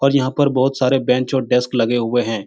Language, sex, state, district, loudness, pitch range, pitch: Hindi, male, Bihar, Supaul, -17 LUFS, 120-135 Hz, 130 Hz